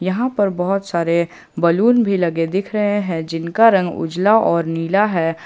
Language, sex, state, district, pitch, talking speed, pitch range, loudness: Hindi, male, Jharkhand, Ranchi, 180 Hz, 175 wpm, 170-205 Hz, -17 LUFS